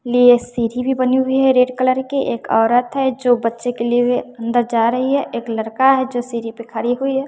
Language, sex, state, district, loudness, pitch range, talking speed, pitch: Hindi, female, Bihar, West Champaran, -17 LUFS, 235-260 Hz, 245 wpm, 245 Hz